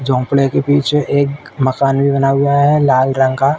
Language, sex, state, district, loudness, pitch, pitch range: Hindi, male, Uttar Pradesh, Ghazipur, -14 LUFS, 140 Hz, 135-140 Hz